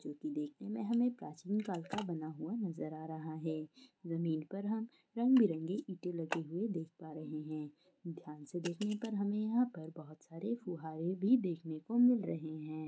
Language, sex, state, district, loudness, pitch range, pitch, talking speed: Hindi, female, Jharkhand, Sahebganj, -38 LUFS, 160-215 Hz, 175 Hz, 190 wpm